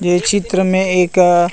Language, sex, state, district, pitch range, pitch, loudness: Chhattisgarhi, male, Chhattisgarh, Rajnandgaon, 175-190 Hz, 180 Hz, -14 LUFS